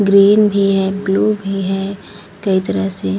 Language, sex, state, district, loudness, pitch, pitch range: Hindi, female, Chhattisgarh, Balrampur, -15 LUFS, 195 Hz, 190-200 Hz